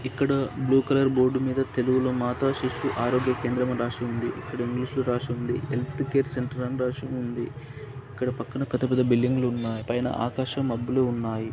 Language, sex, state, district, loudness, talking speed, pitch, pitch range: Telugu, male, Andhra Pradesh, Srikakulam, -26 LUFS, 160 wpm, 125 Hz, 120-135 Hz